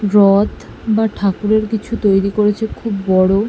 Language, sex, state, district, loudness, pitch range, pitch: Bengali, female, West Bengal, Malda, -15 LUFS, 195-215 Hz, 210 Hz